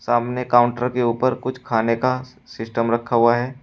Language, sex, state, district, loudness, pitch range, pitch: Hindi, male, Uttar Pradesh, Shamli, -20 LUFS, 115-125 Hz, 120 Hz